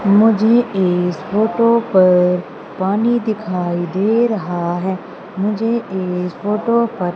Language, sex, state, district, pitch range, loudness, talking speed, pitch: Hindi, female, Madhya Pradesh, Umaria, 180-225 Hz, -16 LUFS, 110 wpm, 200 Hz